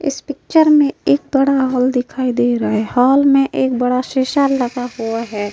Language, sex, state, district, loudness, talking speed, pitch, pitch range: Hindi, female, Uttar Pradesh, Hamirpur, -15 LUFS, 195 wpm, 255 Hz, 245-275 Hz